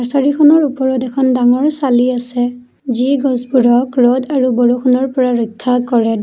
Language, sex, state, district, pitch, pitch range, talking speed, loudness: Assamese, female, Assam, Kamrup Metropolitan, 255 Hz, 245-265 Hz, 135 wpm, -13 LUFS